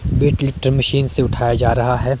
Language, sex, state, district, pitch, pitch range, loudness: Hindi, male, Himachal Pradesh, Shimla, 130 Hz, 120-135 Hz, -17 LUFS